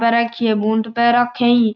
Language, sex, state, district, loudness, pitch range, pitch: Marwari, male, Rajasthan, Churu, -17 LUFS, 220-240 Hz, 235 Hz